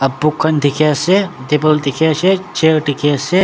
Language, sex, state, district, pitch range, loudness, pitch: Nagamese, male, Nagaland, Dimapur, 145-160 Hz, -14 LUFS, 155 Hz